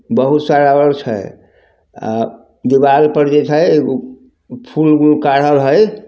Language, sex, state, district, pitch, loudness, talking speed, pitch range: Hindi, male, Bihar, Samastipur, 145 Hz, -13 LUFS, 130 wpm, 130-150 Hz